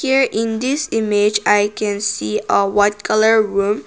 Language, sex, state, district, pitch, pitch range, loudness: English, female, Nagaland, Kohima, 210 Hz, 205-225 Hz, -17 LUFS